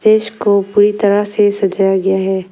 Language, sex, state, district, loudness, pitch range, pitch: Hindi, female, Arunachal Pradesh, Lower Dibang Valley, -13 LUFS, 190-205 Hz, 200 Hz